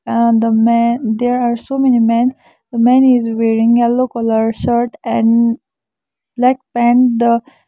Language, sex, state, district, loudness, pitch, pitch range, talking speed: English, female, Sikkim, Gangtok, -14 LUFS, 235 Hz, 230-250 Hz, 140 wpm